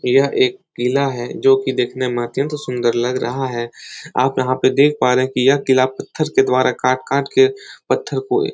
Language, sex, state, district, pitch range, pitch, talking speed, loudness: Hindi, male, Uttar Pradesh, Etah, 125-140 Hz, 130 Hz, 220 wpm, -17 LUFS